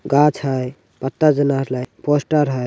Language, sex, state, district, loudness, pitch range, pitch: Magahi, male, Bihar, Jamui, -19 LUFS, 130-145 Hz, 140 Hz